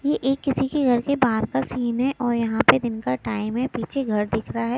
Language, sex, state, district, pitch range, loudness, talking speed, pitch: Hindi, female, Chhattisgarh, Raipur, 220-265 Hz, -23 LUFS, 275 wpm, 240 Hz